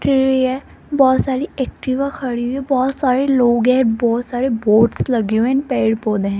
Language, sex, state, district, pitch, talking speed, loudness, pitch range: Hindi, female, Rajasthan, Jaipur, 255 Hz, 170 wpm, -17 LUFS, 235-265 Hz